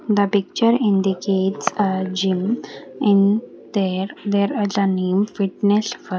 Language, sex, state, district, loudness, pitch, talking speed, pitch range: English, female, Haryana, Jhajjar, -20 LUFS, 200 Hz, 125 wpm, 190-210 Hz